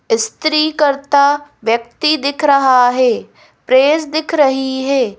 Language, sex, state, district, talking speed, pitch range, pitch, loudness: Hindi, female, Madhya Pradesh, Bhopal, 115 wpm, 255-295 Hz, 280 Hz, -14 LUFS